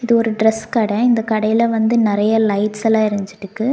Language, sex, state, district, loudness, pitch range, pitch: Tamil, female, Tamil Nadu, Nilgiris, -16 LUFS, 210-230 Hz, 220 Hz